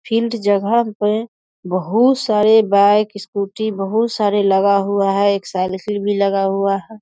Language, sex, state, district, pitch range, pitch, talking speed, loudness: Hindi, female, Bihar, Saharsa, 195-220 Hz, 205 Hz, 155 wpm, -17 LUFS